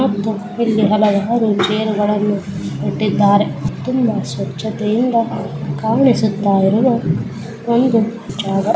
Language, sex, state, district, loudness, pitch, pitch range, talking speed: Kannada, female, Karnataka, Dharwad, -17 LUFS, 215 Hz, 205-230 Hz, 80 wpm